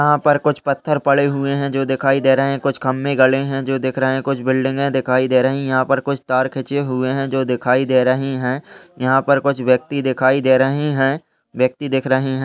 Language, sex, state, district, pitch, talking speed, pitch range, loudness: Hindi, male, Uttar Pradesh, Muzaffarnagar, 135 Hz, 240 wpm, 130-140 Hz, -17 LUFS